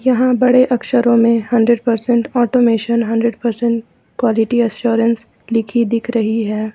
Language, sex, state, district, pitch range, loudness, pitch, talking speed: Hindi, female, Jharkhand, Ranchi, 230-240 Hz, -15 LUFS, 235 Hz, 135 wpm